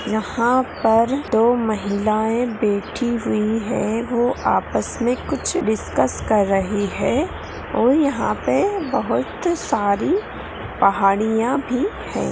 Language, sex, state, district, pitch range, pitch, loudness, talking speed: Magahi, female, Bihar, Gaya, 215-250 Hz, 225 Hz, -20 LUFS, 110 wpm